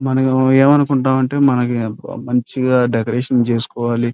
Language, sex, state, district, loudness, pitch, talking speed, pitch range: Telugu, male, Andhra Pradesh, Krishna, -16 LUFS, 125 Hz, 130 wpm, 120-130 Hz